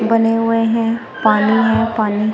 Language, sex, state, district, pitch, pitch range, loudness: Hindi, female, Punjab, Kapurthala, 225 Hz, 215-230 Hz, -15 LUFS